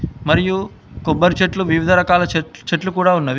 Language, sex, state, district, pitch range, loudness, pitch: Telugu, male, Telangana, Hyderabad, 160-185 Hz, -17 LUFS, 175 Hz